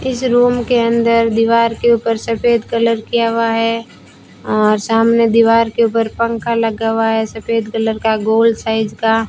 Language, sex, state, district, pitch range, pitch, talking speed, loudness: Hindi, female, Rajasthan, Bikaner, 225-230 Hz, 230 Hz, 175 wpm, -14 LUFS